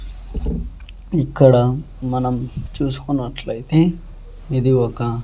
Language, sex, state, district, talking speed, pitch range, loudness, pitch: Telugu, male, Andhra Pradesh, Annamaya, 55 wpm, 120-140 Hz, -19 LUFS, 125 Hz